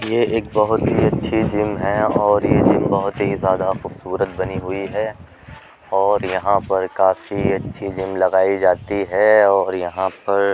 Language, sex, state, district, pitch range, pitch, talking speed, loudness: Hindi, male, Uttar Pradesh, Jyotiba Phule Nagar, 95-105 Hz, 100 Hz, 170 wpm, -18 LUFS